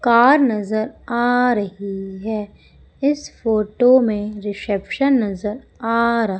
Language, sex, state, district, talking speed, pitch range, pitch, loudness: Hindi, female, Madhya Pradesh, Umaria, 110 wpm, 205-245 Hz, 220 Hz, -19 LUFS